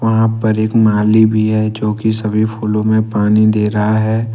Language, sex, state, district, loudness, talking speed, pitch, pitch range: Hindi, male, Jharkhand, Ranchi, -14 LUFS, 205 wpm, 110 Hz, 105-110 Hz